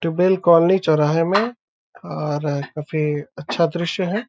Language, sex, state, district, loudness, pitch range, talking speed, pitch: Hindi, male, Uttar Pradesh, Deoria, -19 LUFS, 150-185 Hz, 125 wpm, 165 Hz